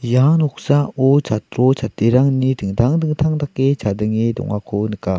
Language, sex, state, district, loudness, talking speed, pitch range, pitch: Garo, male, Meghalaya, South Garo Hills, -17 LUFS, 115 wpm, 110-145 Hz, 130 Hz